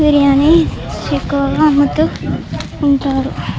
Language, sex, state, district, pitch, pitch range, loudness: Telugu, female, Andhra Pradesh, Chittoor, 280 Hz, 235-295 Hz, -14 LUFS